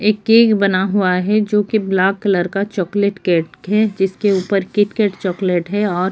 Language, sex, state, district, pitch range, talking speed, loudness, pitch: Hindi, female, Uttar Pradesh, Jyotiba Phule Nagar, 185-210 Hz, 195 wpm, -16 LUFS, 200 Hz